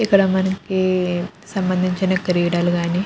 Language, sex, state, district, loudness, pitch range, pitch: Telugu, female, Andhra Pradesh, Krishna, -19 LUFS, 180-190 Hz, 185 Hz